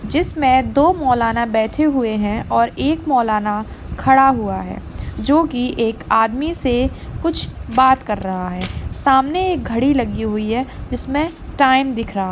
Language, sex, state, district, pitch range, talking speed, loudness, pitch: Hindi, female, Jharkhand, Jamtara, 220-275 Hz, 160 wpm, -17 LUFS, 255 Hz